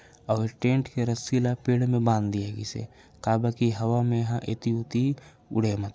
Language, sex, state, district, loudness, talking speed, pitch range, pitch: Chhattisgarhi, male, Chhattisgarh, Raigarh, -27 LUFS, 220 wpm, 110-125 Hz, 115 Hz